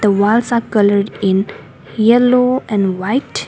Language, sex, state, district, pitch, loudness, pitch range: English, female, Assam, Kamrup Metropolitan, 210 Hz, -14 LUFS, 195-235 Hz